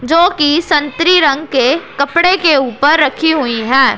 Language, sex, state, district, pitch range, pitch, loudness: Hindi, female, Punjab, Pathankot, 270-330 Hz, 295 Hz, -11 LUFS